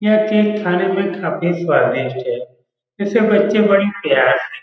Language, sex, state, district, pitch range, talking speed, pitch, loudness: Hindi, male, Bihar, Saran, 190-215 Hz, 170 wpm, 205 Hz, -16 LUFS